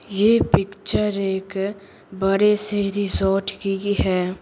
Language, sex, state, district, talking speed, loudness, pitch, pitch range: Hindi, female, Bihar, Patna, 110 wpm, -21 LUFS, 195 Hz, 195-205 Hz